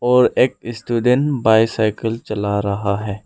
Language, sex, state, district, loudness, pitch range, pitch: Hindi, male, Arunachal Pradesh, Lower Dibang Valley, -18 LUFS, 105-125 Hz, 115 Hz